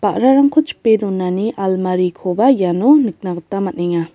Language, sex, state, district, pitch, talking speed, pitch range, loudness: Garo, female, Meghalaya, North Garo Hills, 195 Hz, 115 wpm, 180-245 Hz, -15 LUFS